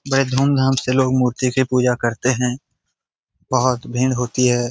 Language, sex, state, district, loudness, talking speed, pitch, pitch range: Hindi, male, Bihar, Jamui, -18 LUFS, 165 wpm, 125 Hz, 125-130 Hz